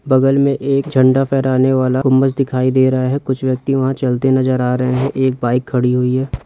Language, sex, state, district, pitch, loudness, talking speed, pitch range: Hindi, male, Chhattisgarh, Rajnandgaon, 130 Hz, -15 LUFS, 225 wpm, 130-135 Hz